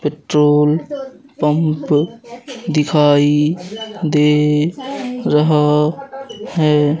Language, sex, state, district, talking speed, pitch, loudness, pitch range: Hindi, male, Madhya Pradesh, Katni, 50 wpm, 155 Hz, -15 LUFS, 150-230 Hz